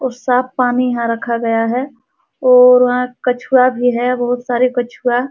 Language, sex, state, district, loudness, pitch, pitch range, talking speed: Hindi, female, Uttar Pradesh, Jalaun, -14 LUFS, 250 Hz, 245-250 Hz, 170 wpm